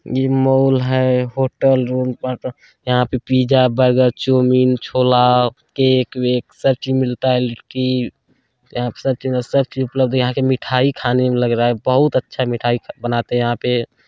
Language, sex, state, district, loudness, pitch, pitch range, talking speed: Hindi, male, Bihar, Saharsa, -17 LUFS, 130 Hz, 125-130 Hz, 180 wpm